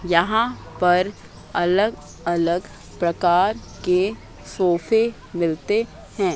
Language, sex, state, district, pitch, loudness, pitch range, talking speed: Hindi, female, Madhya Pradesh, Katni, 180 Hz, -21 LUFS, 170-215 Hz, 85 wpm